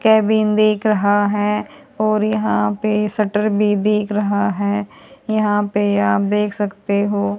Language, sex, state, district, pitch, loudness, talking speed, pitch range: Hindi, female, Haryana, Rohtak, 210 Hz, -18 LUFS, 145 wpm, 205-215 Hz